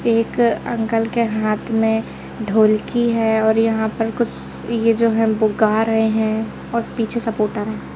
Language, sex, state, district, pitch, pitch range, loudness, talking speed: Hindi, male, Madhya Pradesh, Bhopal, 225 Hz, 220-230 Hz, -19 LUFS, 165 wpm